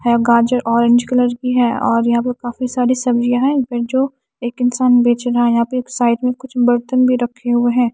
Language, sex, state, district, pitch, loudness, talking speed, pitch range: Hindi, female, Haryana, Charkhi Dadri, 245 Hz, -16 LUFS, 210 wpm, 240-250 Hz